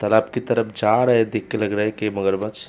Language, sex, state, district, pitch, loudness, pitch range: Hindi, male, Uttar Pradesh, Hamirpur, 105 Hz, -20 LUFS, 105-110 Hz